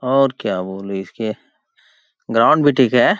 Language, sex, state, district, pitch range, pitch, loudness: Hindi, male, Chhattisgarh, Balrampur, 95-135 Hz, 120 Hz, -17 LUFS